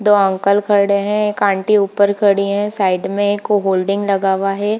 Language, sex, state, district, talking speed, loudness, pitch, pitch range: Hindi, female, Bihar, Purnia, 210 wpm, -15 LUFS, 200 Hz, 195-205 Hz